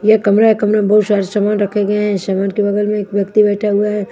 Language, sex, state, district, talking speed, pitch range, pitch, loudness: Hindi, female, Bihar, Katihar, 290 wpm, 205-210 Hz, 210 Hz, -14 LUFS